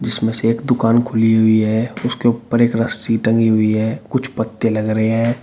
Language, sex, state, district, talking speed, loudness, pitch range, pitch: Hindi, male, Uttar Pradesh, Shamli, 210 wpm, -16 LUFS, 110-120 Hz, 115 Hz